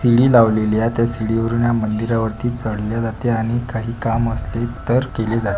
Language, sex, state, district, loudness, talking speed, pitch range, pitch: Marathi, male, Maharashtra, Pune, -19 LUFS, 195 wpm, 110-120 Hz, 115 Hz